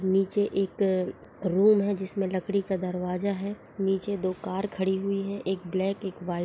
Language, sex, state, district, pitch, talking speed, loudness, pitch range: Hindi, female, Chhattisgarh, Korba, 195 Hz, 185 wpm, -28 LUFS, 185-200 Hz